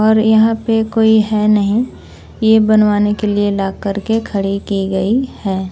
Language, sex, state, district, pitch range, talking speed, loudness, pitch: Hindi, female, Bihar, West Champaran, 200-220 Hz, 170 wpm, -14 LUFS, 215 Hz